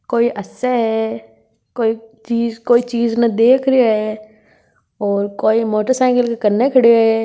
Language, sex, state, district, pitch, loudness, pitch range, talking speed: Hindi, female, Rajasthan, Nagaur, 225 Hz, -16 LUFS, 215-240 Hz, 140 wpm